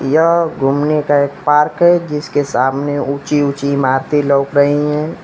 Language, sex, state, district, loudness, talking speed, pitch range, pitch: Hindi, male, Uttar Pradesh, Lucknow, -14 LUFS, 160 wpm, 140-150 Hz, 145 Hz